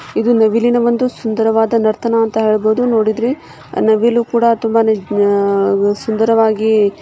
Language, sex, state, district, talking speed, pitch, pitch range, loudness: Kannada, female, Karnataka, Shimoga, 110 wpm, 225 Hz, 215-235 Hz, -14 LUFS